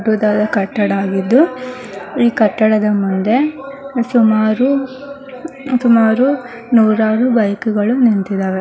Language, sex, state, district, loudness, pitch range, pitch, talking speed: Kannada, male, Karnataka, Gulbarga, -14 LUFS, 210-255 Hz, 230 Hz, 90 wpm